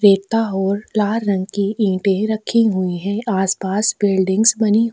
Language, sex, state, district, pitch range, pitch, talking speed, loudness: Hindi, female, Chhattisgarh, Sukma, 195-215 Hz, 205 Hz, 160 wpm, -18 LUFS